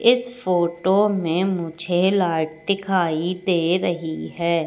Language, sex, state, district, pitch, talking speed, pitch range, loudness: Hindi, female, Madhya Pradesh, Katni, 175 Hz, 115 wpm, 165-190 Hz, -21 LUFS